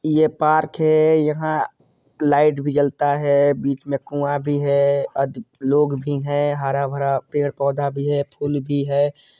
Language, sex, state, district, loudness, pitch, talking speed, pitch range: Hindi, male, Chhattisgarh, Sarguja, -20 LUFS, 145 Hz, 145 wpm, 140-150 Hz